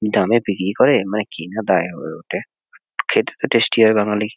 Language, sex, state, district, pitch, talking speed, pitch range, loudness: Bengali, male, West Bengal, Kolkata, 105 Hz, 180 wpm, 100-110 Hz, -18 LUFS